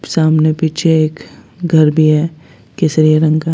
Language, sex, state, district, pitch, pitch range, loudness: Hindi, female, Bihar, West Champaran, 155 Hz, 155-160 Hz, -13 LUFS